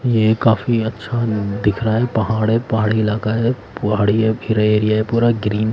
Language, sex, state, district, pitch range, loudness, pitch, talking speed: Hindi, male, Himachal Pradesh, Shimla, 105-115 Hz, -17 LUFS, 110 Hz, 200 wpm